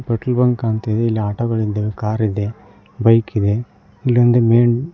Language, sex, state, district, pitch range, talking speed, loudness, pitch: Kannada, male, Karnataka, Koppal, 105-120 Hz, 195 wpm, -17 LUFS, 115 Hz